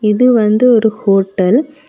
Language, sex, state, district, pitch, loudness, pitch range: Tamil, female, Tamil Nadu, Kanyakumari, 220 Hz, -12 LUFS, 210-250 Hz